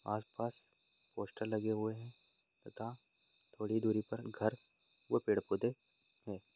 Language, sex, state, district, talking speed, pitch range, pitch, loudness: Hindi, male, Bihar, Supaul, 130 wpm, 110-115 Hz, 110 Hz, -40 LUFS